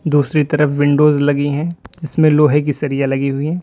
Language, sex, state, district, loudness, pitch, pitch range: Hindi, male, Uttar Pradesh, Lalitpur, -15 LUFS, 150 Hz, 145-155 Hz